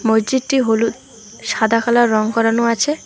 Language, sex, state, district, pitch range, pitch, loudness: Bengali, female, West Bengal, Alipurduar, 225-240 Hz, 230 Hz, -16 LUFS